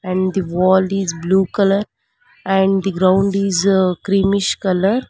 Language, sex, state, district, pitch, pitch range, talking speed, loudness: English, female, Karnataka, Bangalore, 195 Hz, 185-195 Hz, 140 wpm, -16 LUFS